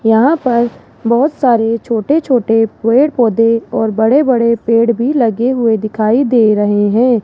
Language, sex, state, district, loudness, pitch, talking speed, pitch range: Hindi, female, Rajasthan, Jaipur, -12 LUFS, 235 Hz, 155 wpm, 225-250 Hz